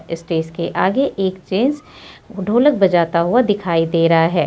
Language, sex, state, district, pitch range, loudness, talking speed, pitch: Hindi, female, Jharkhand, Deoghar, 165-210 Hz, -17 LUFS, 160 wpm, 180 Hz